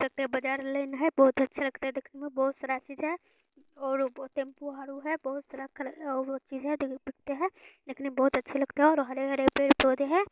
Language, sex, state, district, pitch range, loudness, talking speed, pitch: Hindi, female, Bihar, Purnia, 270-290 Hz, -30 LUFS, 240 wpm, 275 Hz